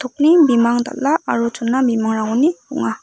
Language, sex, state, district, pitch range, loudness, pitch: Garo, female, Meghalaya, West Garo Hills, 235-285 Hz, -16 LUFS, 245 Hz